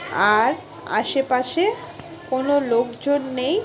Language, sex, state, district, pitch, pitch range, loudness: Bengali, female, West Bengal, Malda, 270 Hz, 255-335 Hz, -21 LUFS